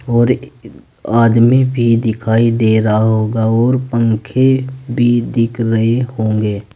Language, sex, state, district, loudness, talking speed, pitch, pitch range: Hindi, male, Uttar Pradesh, Saharanpur, -14 LUFS, 115 wpm, 115 Hz, 110-125 Hz